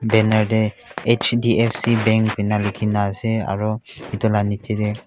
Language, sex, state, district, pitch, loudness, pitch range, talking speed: Nagamese, male, Nagaland, Kohima, 110 Hz, -20 LUFS, 105-115 Hz, 140 wpm